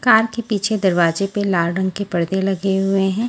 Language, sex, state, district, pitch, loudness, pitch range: Hindi, female, Punjab, Fazilka, 195 Hz, -19 LUFS, 190-210 Hz